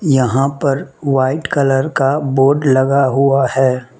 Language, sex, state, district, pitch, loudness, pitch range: Hindi, male, Mizoram, Aizawl, 135 Hz, -14 LUFS, 135-140 Hz